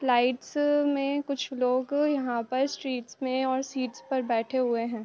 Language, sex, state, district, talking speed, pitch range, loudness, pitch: Hindi, female, Uttar Pradesh, Jalaun, 165 wpm, 245-275 Hz, -28 LUFS, 260 Hz